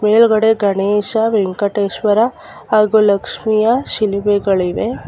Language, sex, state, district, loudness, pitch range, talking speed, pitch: Kannada, female, Karnataka, Bangalore, -15 LUFS, 200-220 Hz, 70 wpm, 210 Hz